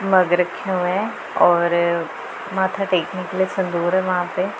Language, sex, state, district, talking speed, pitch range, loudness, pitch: Hindi, female, Punjab, Pathankot, 170 wpm, 175-190 Hz, -20 LUFS, 185 Hz